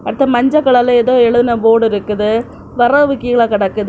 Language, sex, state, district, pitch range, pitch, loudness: Tamil, female, Tamil Nadu, Kanyakumari, 225-250 Hz, 240 Hz, -12 LUFS